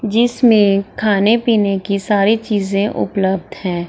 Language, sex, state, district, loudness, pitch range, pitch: Hindi, female, Bihar, Gaya, -15 LUFS, 195-220 Hz, 205 Hz